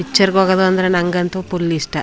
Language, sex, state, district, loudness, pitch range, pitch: Kannada, female, Karnataka, Chamarajanagar, -16 LUFS, 175-190 Hz, 185 Hz